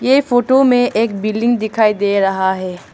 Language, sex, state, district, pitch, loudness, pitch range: Hindi, female, Arunachal Pradesh, Longding, 220 Hz, -15 LUFS, 200-245 Hz